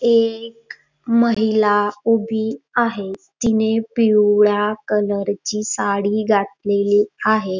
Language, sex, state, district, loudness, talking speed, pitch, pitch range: Marathi, female, Maharashtra, Dhule, -18 LUFS, 85 wpm, 215 Hz, 205-230 Hz